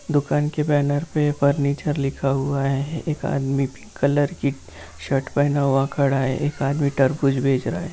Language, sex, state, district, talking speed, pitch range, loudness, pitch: Hindi, male, Bihar, Jamui, 180 wpm, 135-145 Hz, -22 LUFS, 140 Hz